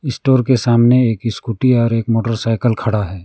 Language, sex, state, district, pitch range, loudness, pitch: Hindi, male, West Bengal, Alipurduar, 115-125 Hz, -15 LUFS, 115 Hz